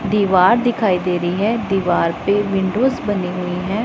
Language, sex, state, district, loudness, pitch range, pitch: Hindi, female, Punjab, Pathankot, -17 LUFS, 180-215 Hz, 195 Hz